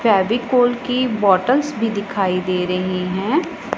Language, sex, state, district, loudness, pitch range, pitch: Hindi, female, Punjab, Pathankot, -18 LUFS, 190-250 Hz, 225 Hz